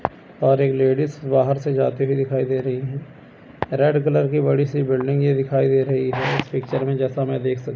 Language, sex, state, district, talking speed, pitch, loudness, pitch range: Hindi, male, Chandigarh, Chandigarh, 225 wpm, 135 Hz, -20 LUFS, 130-140 Hz